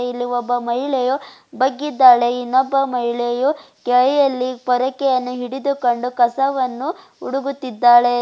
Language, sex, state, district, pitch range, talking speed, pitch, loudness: Kannada, female, Karnataka, Bidar, 245-270 Hz, 80 wpm, 255 Hz, -18 LUFS